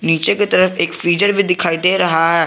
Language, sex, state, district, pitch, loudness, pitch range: Hindi, male, Jharkhand, Garhwa, 180 Hz, -14 LUFS, 165-190 Hz